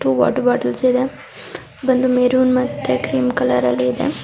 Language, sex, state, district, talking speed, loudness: Kannada, female, Karnataka, Raichur, 140 wpm, -17 LUFS